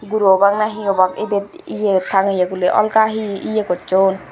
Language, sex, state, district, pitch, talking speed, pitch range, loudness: Chakma, female, Tripura, Dhalai, 200 Hz, 165 wpm, 190-215 Hz, -17 LUFS